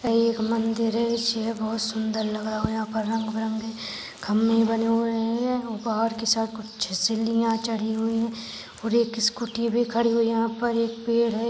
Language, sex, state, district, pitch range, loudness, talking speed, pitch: Hindi, female, Maharashtra, Nagpur, 220-230 Hz, -25 LUFS, 205 wpm, 225 Hz